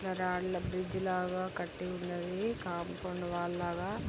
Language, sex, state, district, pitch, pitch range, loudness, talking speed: Telugu, female, Andhra Pradesh, Krishna, 180 Hz, 175-185 Hz, -36 LUFS, 115 wpm